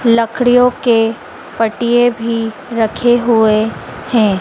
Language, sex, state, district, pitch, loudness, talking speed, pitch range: Hindi, female, Madhya Pradesh, Dhar, 230 Hz, -14 LUFS, 95 wpm, 225-240 Hz